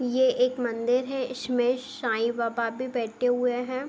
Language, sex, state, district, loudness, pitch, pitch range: Hindi, female, Uttar Pradesh, Budaun, -27 LUFS, 250 Hz, 235-255 Hz